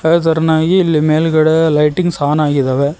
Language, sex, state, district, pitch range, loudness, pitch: Kannada, male, Karnataka, Koppal, 150-165 Hz, -13 LUFS, 160 Hz